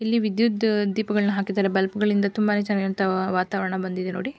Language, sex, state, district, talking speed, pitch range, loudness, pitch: Kannada, female, Karnataka, Mysore, 150 wpm, 190-210 Hz, -23 LUFS, 200 Hz